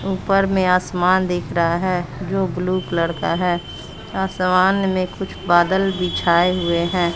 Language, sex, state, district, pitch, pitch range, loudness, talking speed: Hindi, female, Bihar, West Champaran, 180 Hz, 175-190 Hz, -19 LUFS, 150 wpm